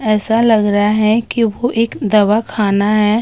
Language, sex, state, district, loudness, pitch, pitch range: Hindi, female, Uttar Pradesh, Hamirpur, -14 LUFS, 215 Hz, 210-230 Hz